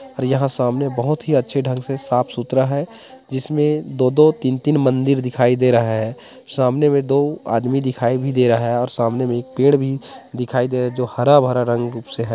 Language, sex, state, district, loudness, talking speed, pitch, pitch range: Hindi, male, Chhattisgarh, Korba, -18 LUFS, 230 wpm, 130 Hz, 125-140 Hz